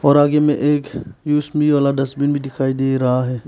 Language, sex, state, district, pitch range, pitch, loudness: Hindi, male, Arunachal Pradesh, Papum Pare, 135-150 Hz, 140 Hz, -17 LUFS